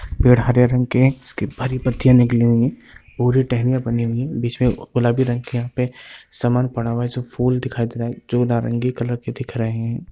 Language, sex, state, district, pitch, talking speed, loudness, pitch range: Hindi, male, Bihar, Lakhisarai, 120 Hz, 235 wpm, -19 LUFS, 120-125 Hz